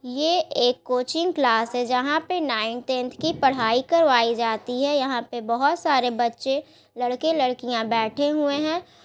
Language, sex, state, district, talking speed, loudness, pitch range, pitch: Hindi, female, Bihar, Gaya, 160 wpm, -23 LUFS, 240-295 Hz, 250 Hz